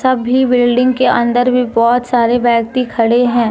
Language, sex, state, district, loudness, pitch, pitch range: Hindi, female, Jharkhand, Deoghar, -13 LUFS, 245 Hz, 235-250 Hz